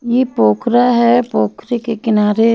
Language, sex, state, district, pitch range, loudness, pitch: Hindi, female, Himachal Pradesh, Shimla, 215-240 Hz, -14 LUFS, 235 Hz